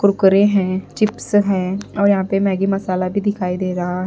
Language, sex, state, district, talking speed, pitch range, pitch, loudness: Hindi, female, Punjab, Pathankot, 190 wpm, 185-200 Hz, 195 Hz, -18 LUFS